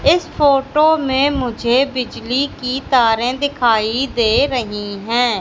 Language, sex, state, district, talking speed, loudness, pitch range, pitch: Hindi, female, Madhya Pradesh, Katni, 120 wpm, -16 LUFS, 235-280 Hz, 255 Hz